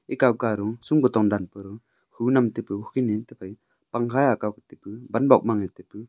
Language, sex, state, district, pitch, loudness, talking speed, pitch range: Wancho, male, Arunachal Pradesh, Longding, 110 Hz, -24 LUFS, 80 wpm, 105-120 Hz